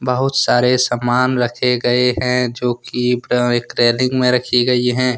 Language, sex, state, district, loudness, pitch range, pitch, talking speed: Hindi, male, Jharkhand, Ranchi, -16 LUFS, 120-125 Hz, 125 Hz, 175 wpm